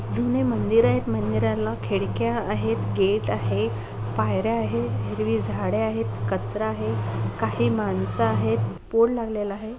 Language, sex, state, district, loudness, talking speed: Marathi, female, Maharashtra, Chandrapur, -24 LUFS, 130 wpm